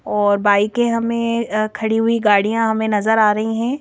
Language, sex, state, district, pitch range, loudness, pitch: Hindi, female, Madhya Pradesh, Bhopal, 210-230 Hz, -17 LUFS, 220 Hz